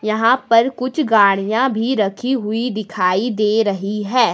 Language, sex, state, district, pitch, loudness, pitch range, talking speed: Hindi, female, Jharkhand, Deoghar, 220 Hz, -17 LUFS, 205-245 Hz, 150 wpm